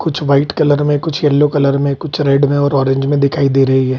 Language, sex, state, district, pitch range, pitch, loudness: Hindi, male, Bihar, Kishanganj, 140-150 Hz, 145 Hz, -13 LUFS